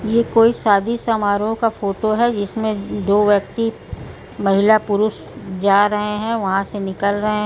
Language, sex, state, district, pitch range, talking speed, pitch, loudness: Hindi, female, Uttar Pradesh, Budaun, 200-225 Hz, 155 wpm, 210 Hz, -18 LUFS